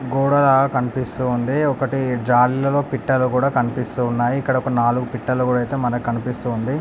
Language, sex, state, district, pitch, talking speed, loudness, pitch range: Telugu, male, Andhra Pradesh, Anantapur, 125 Hz, 140 wpm, -19 LUFS, 125-135 Hz